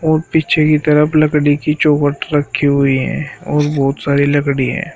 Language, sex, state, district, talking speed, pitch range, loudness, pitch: Hindi, male, Uttar Pradesh, Shamli, 180 wpm, 140-155 Hz, -14 LUFS, 150 Hz